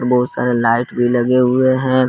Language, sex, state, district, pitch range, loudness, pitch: Hindi, male, Jharkhand, Garhwa, 120-130 Hz, -15 LUFS, 125 Hz